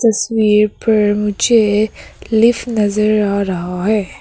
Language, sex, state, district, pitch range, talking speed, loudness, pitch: Hindi, female, Arunachal Pradesh, Papum Pare, 205-220 Hz, 115 wpm, -14 LUFS, 210 Hz